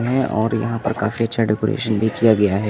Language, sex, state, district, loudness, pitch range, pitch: Hindi, male, Uttar Pradesh, Lucknow, -19 LUFS, 105-115 Hz, 110 Hz